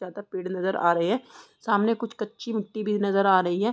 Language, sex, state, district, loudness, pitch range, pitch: Hindi, female, Bihar, Gopalganj, -25 LUFS, 185-220 Hz, 205 Hz